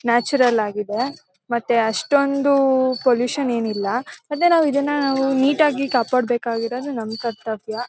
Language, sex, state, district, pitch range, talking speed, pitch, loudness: Kannada, female, Karnataka, Mysore, 230-275 Hz, 105 wpm, 250 Hz, -20 LUFS